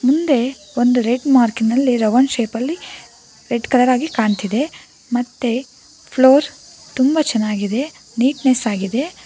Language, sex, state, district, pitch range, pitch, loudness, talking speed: Kannada, female, Karnataka, Bangalore, 235-270 Hz, 250 Hz, -17 LUFS, 105 wpm